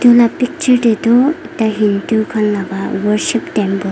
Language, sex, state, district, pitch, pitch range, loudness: Nagamese, female, Nagaland, Dimapur, 220 Hz, 205-245 Hz, -14 LUFS